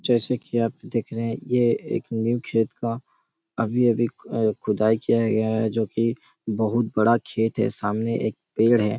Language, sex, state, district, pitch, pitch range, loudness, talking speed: Hindi, male, Chhattisgarh, Raigarh, 115 Hz, 110-120 Hz, -23 LUFS, 175 wpm